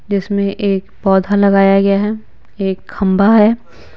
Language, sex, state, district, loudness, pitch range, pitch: Hindi, female, Bihar, Patna, -14 LUFS, 195-205 Hz, 200 Hz